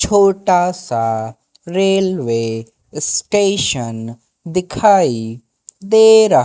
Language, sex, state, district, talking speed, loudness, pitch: Hindi, male, Madhya Pradesh, Katni, 65 wpm, -15 LUFS, 160 Hz